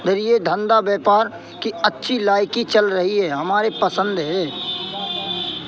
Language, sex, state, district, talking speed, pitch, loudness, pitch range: Hindi, male, Madhya Pradesh, Katni, 125 wpm, 210 Hz, -19 LUFS, 200-225 Hz